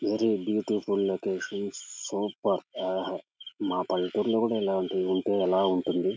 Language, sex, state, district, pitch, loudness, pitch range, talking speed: Telugu, male, Andhra Pradesh, Guntur, 100 Hz, -28 LUFS, 95-105 Hz, 125 wpm